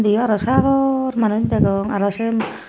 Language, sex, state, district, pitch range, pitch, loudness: Chakma, female, Tripura, Dhalai, 205-250 Hz, 220 Hz, -18 LUFS